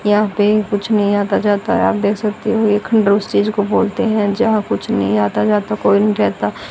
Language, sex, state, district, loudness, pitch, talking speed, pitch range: Hindi, female, Haryana, Rohtak, -16 LUFS, 205 Hz, 230 wpm, 150-215 Hz